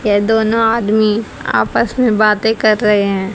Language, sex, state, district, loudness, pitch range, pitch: Hindi, female, Haryana, Rohtak, -14 LUFS, 210-225 Hz, 215 Hz